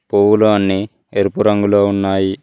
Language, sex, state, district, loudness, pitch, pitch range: Telugu, male, Telangana, Mahabubabad, -15 LUFS, 100 Hz, 100-105 Hz